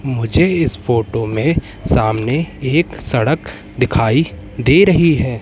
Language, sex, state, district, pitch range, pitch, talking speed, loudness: Hindi, male, Madhya Pradesh, Katni, 115-160 Hz, 130 Hz, 120 wpm, -15 LUFS